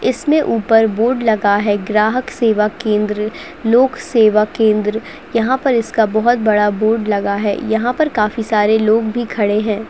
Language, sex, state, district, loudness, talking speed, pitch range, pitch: Hindi, female, Uttarakhand, Uttarkashi, -15 LUFS, 165 wpm, 210-235 Hz, 220 Hz